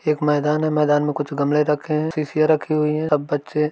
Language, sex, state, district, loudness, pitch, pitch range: Hindi, male, Uttar Pradesh, Varanasi, -20 LUFS, 150 Hz, 150-155 Hz